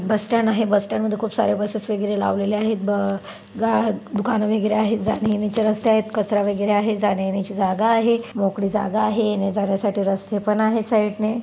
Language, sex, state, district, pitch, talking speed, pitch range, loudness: Marathi, female, Maharashtra, Dhule, 210 Hz, 185 wpm, 205-220 Hz, -21 LUFS